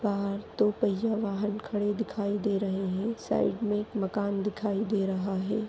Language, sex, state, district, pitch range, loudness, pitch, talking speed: Hindi, female, Maharashtra, Chandrapur, 200-215 Hz, -30 LUFS, 205 Hz, 180 wpm